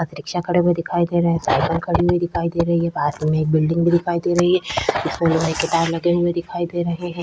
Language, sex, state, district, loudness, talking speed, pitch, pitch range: Hindi, female, Chhattisgarh, Korba, -19 LUFS, 265 wpm, 170 Hz, 165-175 Hz